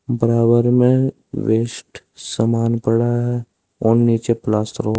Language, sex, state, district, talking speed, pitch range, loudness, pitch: Hindi, male, Uttar Pradesh, Saharanpur, 120 wpm, 110-120 Hz, -18 LUFS, 115 Hz